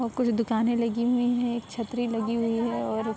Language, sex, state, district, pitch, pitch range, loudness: Hindi, female, Uttar Pradesh, Muzaffarnagar, 235 Hz, 230-240 Hz, -27 LUFS